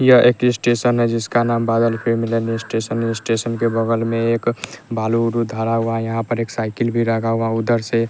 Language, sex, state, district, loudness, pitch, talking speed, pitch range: Hindi, male, Bihar, West Champaran, -19 LUFS, 115 Hz, 215 wpm, 115-120 Hz